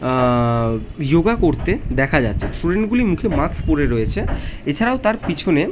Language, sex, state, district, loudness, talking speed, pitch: Bengali, male, West Bengal, North 24 Parganas, -19 LUFS, 145 wpm, 135 Hz